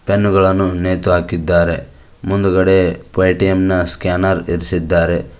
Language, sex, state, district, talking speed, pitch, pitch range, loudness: Kannada, male, Karnataka, Koppal, 100 wpm, 90 Hz, 85-95 Hz, -15 LUFS